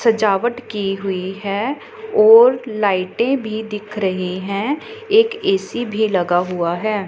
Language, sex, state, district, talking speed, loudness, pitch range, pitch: Hindi, female, Punjab, Pathankot, 135 wpm, -18 LUFS, 195-275 Hz, 215 Hz